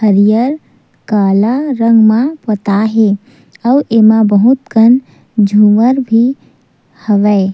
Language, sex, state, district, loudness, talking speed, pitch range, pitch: Chhattisgarhi, female, Chhattisgarh, Sukma, -11 LUFS, 105 wpm, 205-245 Hz, 220 Hz